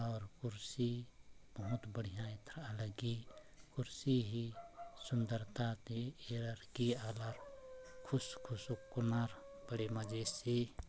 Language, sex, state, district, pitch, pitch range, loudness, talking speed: Sadri, male, Chhattisgarh, Jashpur, 120 Hz, 110-130 Hz, -43 LUFS, 100 wpm